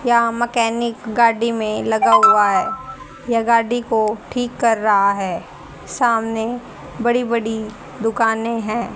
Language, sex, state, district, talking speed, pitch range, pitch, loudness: Hindi, female, Haryana, Rohtak, 125 wpm, 220-240 Hz, 230 Hz, -18 LUFS